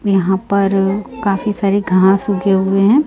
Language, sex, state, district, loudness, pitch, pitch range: Hindi, female, Chhattisgarh, Raipur, -15 LUFS, 195 Hz, 195-205 Hz